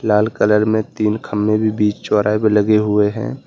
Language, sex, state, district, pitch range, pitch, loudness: Hindi, male, Uttar Pradesh, Lalitpur, 105-110 Hz, 105 Hz, -16 LUFS